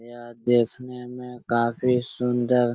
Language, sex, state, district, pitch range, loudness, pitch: Hindi, male, Bihar, Jahanabad, 120-125 Hz, -24 LUFS, 120 Hz